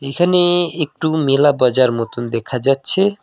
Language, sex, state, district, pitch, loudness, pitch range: Bengali, male, West Bengal, Alipurduar, 140 Hz, -15 LUFS, 125-175 Hz